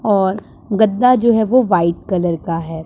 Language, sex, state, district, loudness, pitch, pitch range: Hindi, male, Punjab, Pathankot, -15 LUFS, 195 Hz, 170-220 Hz